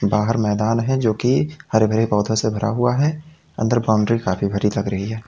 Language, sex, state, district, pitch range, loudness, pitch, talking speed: Hindi, male, Uttar Pradesh, Lalitpur, 105-120 Hz, -19 LUFS, 110 Hz, 215 wpm